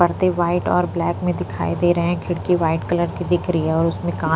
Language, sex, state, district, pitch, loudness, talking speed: Hindi, female, Punjab, Pathankot, 170 Hz, -20 LUFS, 275 wpm